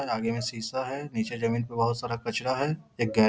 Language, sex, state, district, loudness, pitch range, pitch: Hindi, male, Bihar, Darbhanga, -30 LUFS, 115-130 Hz, 120 Hz